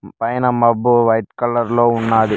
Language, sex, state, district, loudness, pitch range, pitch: Telugu, male, Telangana, Mahabubabad, -16 LUFS, 115-120 Hz, 120 Hz